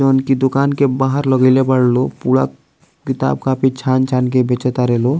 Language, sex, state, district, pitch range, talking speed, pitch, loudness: Bhojpuri, male, Bihar, East Champaran, 125-135 Hz, 195 wpm, 130 Hz, -15 LUFS